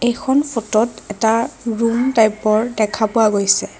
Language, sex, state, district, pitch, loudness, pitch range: Assamese, female, Assam, Kamrup Metropolitan, 225 Hz, -17 LUFS, 215-235 Hz